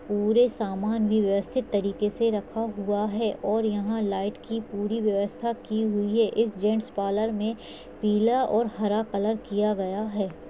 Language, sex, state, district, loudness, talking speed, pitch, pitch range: Hindi, female, Chhattisgarh, Raigarh, -26 LUFS, 160 wpm, 215 Hz, 205-225 Hz